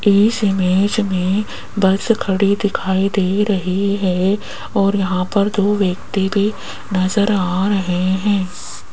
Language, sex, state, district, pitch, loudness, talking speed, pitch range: Hindi, female, Rajasthan, Jaipur, 195 Hz, -17 LUFS, 130 wpm, 190-205 Hz